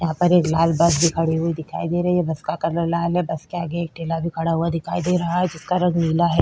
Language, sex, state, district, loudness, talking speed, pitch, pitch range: Hindi, female, Chhattisgarh, Korba, -21 LUFS, 310 wpm, 170 Hz, 165-175 Hz